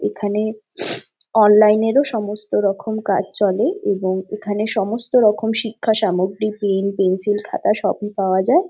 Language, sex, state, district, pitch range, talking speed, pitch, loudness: Bengali, female, West Bengal, Jhargram, 200-220 Hz, 140 wpm, 210 Hz, -18 LUFS